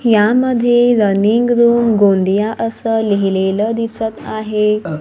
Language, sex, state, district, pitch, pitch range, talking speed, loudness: Marathi, female, Maharashtra, Gondia, 220 Hz, 205-230 Hz, 95 wpm, -14 LUFS